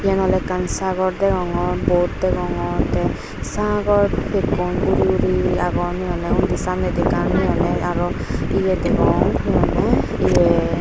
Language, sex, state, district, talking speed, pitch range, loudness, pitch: Chakma, female, Tripura, Unakoti, 145 wpm, 180-195 Hz, -19 LUFS, 185 Hz